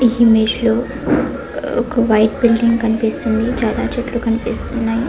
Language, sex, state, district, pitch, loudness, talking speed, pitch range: Telugu, female, Telangana, Karimnagar, 230 Hz, -16 LUFS, 130 wpm, 225-240 Hz